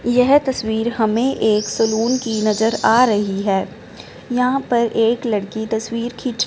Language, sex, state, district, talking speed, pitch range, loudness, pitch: Hindi, female, Punjab, Fazilka, 150 wpm, 220-245 Hz, -18 LUFS, 225 Hz